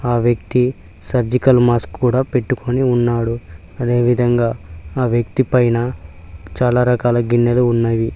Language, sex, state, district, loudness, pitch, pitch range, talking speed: Telugu, male, Telangana, Mahabubabad, -16 LUFS, 120 Hz, 115-125 Hz, 110 wpm